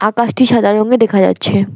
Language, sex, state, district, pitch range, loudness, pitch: Bengali, female, West Bengal, Alipurduar, 150-235 Hz, -12 LUFS, 215 Hz